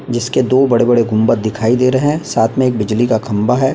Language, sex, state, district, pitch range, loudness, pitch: Hindi, male, Maharashtra, Chandrapur, 110-130 Hz, -14 LUFS, 120 Hz